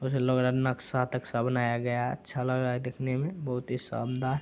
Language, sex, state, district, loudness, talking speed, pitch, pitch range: Hindi, male, Bihar, Araria, -30 LUFS, 245 wpm, 125 Hz, 125-130 Hz